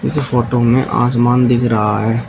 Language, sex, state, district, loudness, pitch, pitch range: Hindi, male, Uttar Pradesh, Shamli, -14 LUFS, 120 Hz, 115-125 Hz